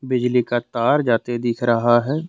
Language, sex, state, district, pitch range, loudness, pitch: Hindi, male, Jharkhand, Deoghar, 120-125 Hz, -19 LUFS, 120 Hz